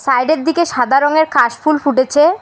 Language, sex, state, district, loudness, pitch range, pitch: Bengali, female, West Bengal, Alipurduar, -13 LUFS, 270-315 Hz, 300 Hz